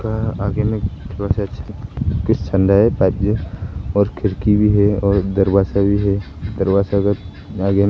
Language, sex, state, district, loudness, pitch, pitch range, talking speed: Hindi, male, Arunachal Pradesh, Papum Pare, -18 LUFS, 100 Hz, 95-105 Hz, 90 wpm